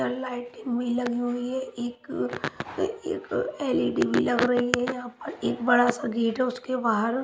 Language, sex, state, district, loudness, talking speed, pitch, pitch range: Hindi, female, Haryana, Rohtak, -27 LUFS, 175 wpm, 245 Hz, 240-255 Hz